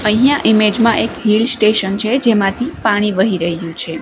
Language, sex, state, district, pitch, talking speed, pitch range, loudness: Gujarati, female, Gujarat, Gandhinagar, 215 Hz, 180 wpm, 195-230 Hz, -14 LUFS